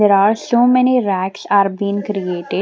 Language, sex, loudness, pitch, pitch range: English, female, -16 LUFS, 200 Hz, 195-220 Hz